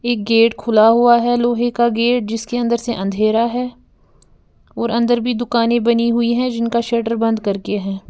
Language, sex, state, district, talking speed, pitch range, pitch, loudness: Hindi, female, Uttar Pradesh, Lalitpur, 185 wpm, 225-240 Hz, 235 Hz, -16 LUFS